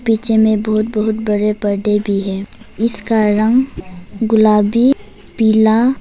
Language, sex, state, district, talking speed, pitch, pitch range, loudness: Hindi, female, Arunachal Pradesh, Papum Pare, 140 wpm, 215 Hz, 205-225 Hz, -15 LUFS